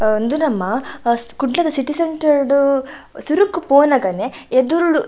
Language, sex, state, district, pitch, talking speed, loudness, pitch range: Tulu, female, Karnataka, Dakshina Kannada, 280 Hz, 120 wpm, -17 LUFS, 240-315 Hz